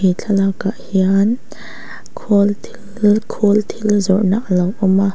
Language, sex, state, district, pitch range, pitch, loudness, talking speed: Mizo, female, Mizoram, Aizawl, 195-210 Hz, 200 Hz, -16 LUFS, 150 wpm